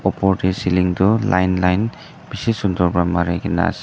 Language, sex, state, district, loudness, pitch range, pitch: Nagamese, male, Nagaland, Dimapur, -18 LUFS, 90-105 Hz, 95 Hz